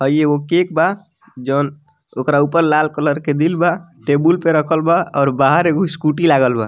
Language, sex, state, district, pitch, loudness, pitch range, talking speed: Bhojpuri, male, Bihar, Muzaffarpur, 155 Hz, -16 LUFS, 145-170 Hz, 200 wpm